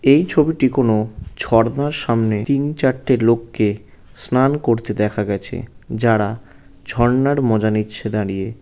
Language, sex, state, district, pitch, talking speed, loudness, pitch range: Bengali, male, West Bengal, North 24 Parganas, 115 Hz, 120 wpm, -18 LUFS, 105-130 Hz